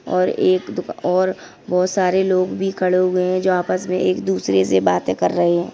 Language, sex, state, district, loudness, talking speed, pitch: Hindi, female, Chhattisgarh, Bilaspur, -18 LUFS, 220 wpm, 185 Hz